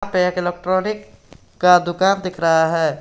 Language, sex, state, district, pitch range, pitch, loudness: Hindi, male, Jharkhand, Garhwa, 165-185 Hz, 180 Hz, -18 LUFS